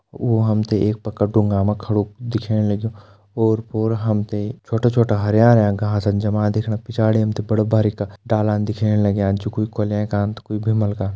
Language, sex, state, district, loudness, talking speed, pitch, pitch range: Hindi, male, Uttarakhand, Tehri Garhwal, -19 LUFS, 195 wpm, 105 Hz, 105-110 Hz